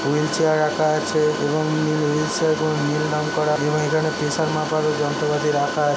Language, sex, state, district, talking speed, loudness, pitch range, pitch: Bengali, male, West Bengal, Kolkata, 180 wpm, -21 LUFS, 150-155 Hz, 150 Hz